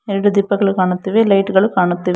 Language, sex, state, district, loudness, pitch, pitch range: Kannada, female, Karnataka, Bangalore, -15 LUFS, 195 Hz, 185-200 Hz